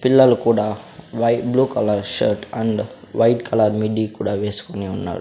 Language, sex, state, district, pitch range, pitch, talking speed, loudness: Telugu, male, Andhra Pradesh, Sri Satya Sai, 105-120 Hz, 110 Hz, 150 wpm, -19 LUFS